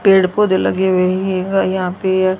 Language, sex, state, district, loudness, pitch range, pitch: Hindi, female, Haryana, Jhajjar, -15 LUFS, 185-190 Hz, 190 Hz